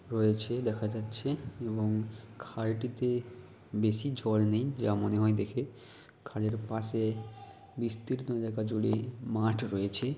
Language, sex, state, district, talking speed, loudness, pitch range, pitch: Bengali, male, West Bengal, Jhargram, 110 wpm, -33 LUFS, 110-120 Hz, 110 Hz